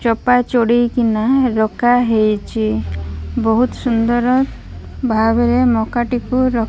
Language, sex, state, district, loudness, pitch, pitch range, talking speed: Odia, female, Odisha, Malkangiri, -16 LUFS, 240 Hz, 220-245 Hz, 90 wpm